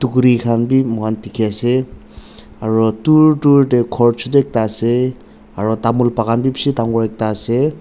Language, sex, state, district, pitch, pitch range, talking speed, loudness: Nagamese, male, Nagaland, Dimapur, 120 Hz, 110-130 Hz, 175 wpm, -15 LUFS